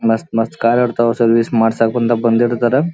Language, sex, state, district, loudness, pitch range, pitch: Kannada, male, Karnataka, Dharwad, -15 LUFS, 115-120 Hz, 115 Hz